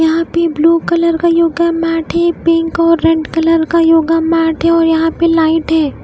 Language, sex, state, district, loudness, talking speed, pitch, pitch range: Hindi, female, Himachal Pradesh, Shimla, -12 LUFS, 210 wpm, 330 Hz, 325-335 Hz